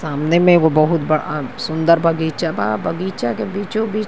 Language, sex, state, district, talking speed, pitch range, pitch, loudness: Bhojpuri, female, Uttar Pradesh, Ghazipur, 190 wpm, 155-175 Hz, 160 Hz, -17 LUFS